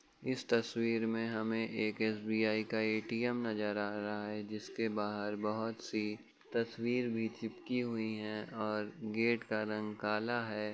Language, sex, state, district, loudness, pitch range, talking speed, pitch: Hindi, male, Uttar Pradesh, Jyotiba Phule Nagar, -37 LUFS, 105-115 Hz, 150 wpm, 110 Hz